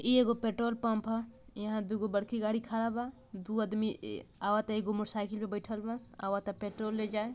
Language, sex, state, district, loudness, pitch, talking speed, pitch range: Bhojpuri, female, Bihar, Gopalganj, -35 LUFS, 215 Hz, 210 wpm, 210-230 Hz